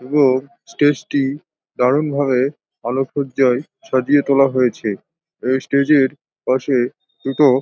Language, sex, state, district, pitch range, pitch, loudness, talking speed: Bengali, male, West Bengal, Dakshin Dinajpur, 130-145 Hz, 135 Hz, -18 LUFS, 120 wpm